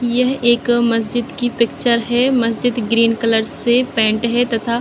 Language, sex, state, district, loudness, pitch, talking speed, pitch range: Hindi, female, Bihar, Kishanganj, -16 LUFS, 235 Hz, 175 wpm, 230-245 Hz